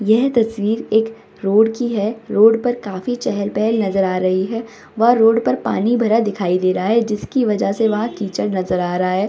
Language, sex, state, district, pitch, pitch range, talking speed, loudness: Hindi, female, Bihar, Samastipur, 220 Hz, 195-225 Hz, 205 wpm, -17 LUFS